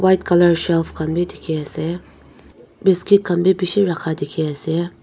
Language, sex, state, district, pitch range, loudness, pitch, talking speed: Nagamese, female, Nagaland, Dimapur, 160-185 Hz, -18 LUFS, 170 Hz, 165 wpm